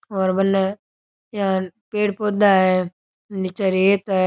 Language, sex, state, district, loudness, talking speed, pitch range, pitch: Rajasthani, male, Rajasthan, Nagaur, -20 LUFS, 125 wpm, 185-205 Hz, 195 Hz